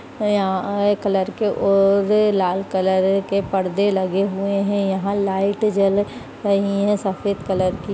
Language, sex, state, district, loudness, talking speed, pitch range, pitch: Hindi, female, Uttar Pradesh, Budaun, -20 LUFS, 160 wpm, 190-205 Hz, 200 Hz